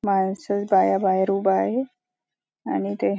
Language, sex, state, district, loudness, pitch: Marathi, female, Maharashtra, Nagpur, -22 LUFS, 190 Hz